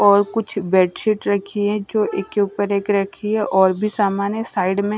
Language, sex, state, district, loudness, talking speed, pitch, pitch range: Hindi, female, Odisha, Nuapada, -19 LUFS, 215 wpm, 205 Hz, 195-210 Hz